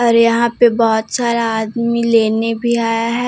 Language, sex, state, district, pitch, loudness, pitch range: Hindi, female, Jharkhand, Deoghar, 230 Hz, -15 LUFS, 225-235 Hz